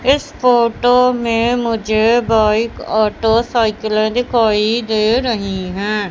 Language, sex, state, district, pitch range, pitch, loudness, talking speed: Hindi, female, Madhya Pradesh, Katni, 215-240 Hz, 225 Hz, -15 LUFS, 110 wpm